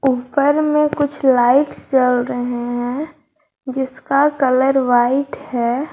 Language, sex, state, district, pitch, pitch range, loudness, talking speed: Hindi, female, Jharkhand, Garhwa, 265 Hz, 250-285 Hz, -17 LUFS, 110 wpm